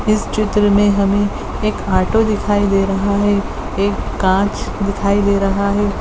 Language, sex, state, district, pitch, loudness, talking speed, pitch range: Hindi, female, Maharashtra, Dhule, 200 Hz, -16 LUFS, 160 wpm, 200-205 Hz